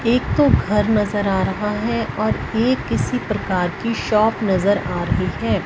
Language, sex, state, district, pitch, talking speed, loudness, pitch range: Hindi, female, Punjab, Fazilka, 210 Hz, 180 wpm, -19 LUFS, 195-230 Hz